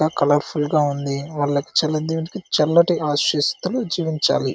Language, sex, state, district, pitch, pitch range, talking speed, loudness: Telugu, male, Andhra Pradesh, Chittoor, 155 Hz, 145-165 Hz, 105 wpm, -20 LUFS